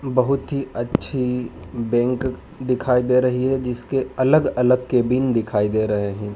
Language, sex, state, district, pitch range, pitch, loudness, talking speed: Hindi, male, Madhya Pradesh, Dhar, 120-130 Hz, 125 Hz, -21 LUFS, 140 wpm